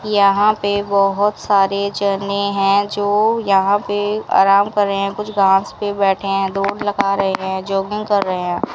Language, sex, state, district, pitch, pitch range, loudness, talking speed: Hindi, female, Rajasthan, Bikaner, 200 Hz, 195-205 Hz, -17 LUFS, 180 wpm